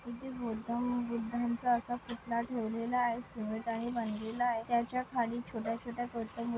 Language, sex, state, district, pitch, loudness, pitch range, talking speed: Marathi, female, Maharashtra, Nagpur, 235 Hz, -35 LUFS, 230-245 Hz, 145 wpm